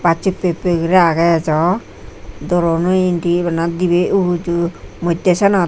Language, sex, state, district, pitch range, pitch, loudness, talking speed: Chakma, female, Tripura, Unakoti, 165-180 Hz, 175 Hz, -16 LUFS, 145 wpm